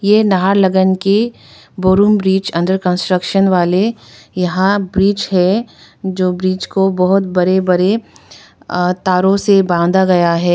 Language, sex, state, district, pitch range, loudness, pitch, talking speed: Hindi, female, Arunachal Pradesh, Papum Pare, 180-195 Hz, -14 LUFS, 190 Hz, 130 wpm